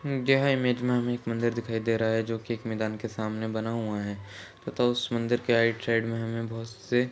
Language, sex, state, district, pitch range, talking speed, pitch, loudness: Hindi, male, Chhattisgarh, Balrampur, 110-120 Hz, 245 wpm, 115 Hz, -28 LUFS